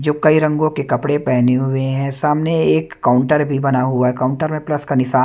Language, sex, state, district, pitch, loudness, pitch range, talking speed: Hindi, male, Punjab, Kapurthala, 140 Hz, -16 LUFS, 130-150 Hz, 230 wpm